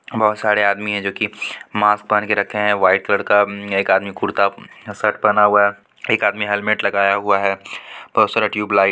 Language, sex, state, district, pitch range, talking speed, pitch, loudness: Hindi, female, Bihar, Supaul, 100-105 Hz, 210 wpm, 105 Hz, -17 LUFS